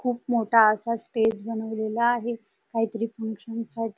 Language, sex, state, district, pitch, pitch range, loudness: Marathi, female, Maharashtra, Dhule, 230 Hz, 220-235 Hz, -25 LUFS